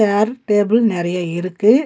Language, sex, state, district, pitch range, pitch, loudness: Tamil, female, Tamil Nadu, Nilgiris, 180-225 Hz, 205 Hz, -17 LUFS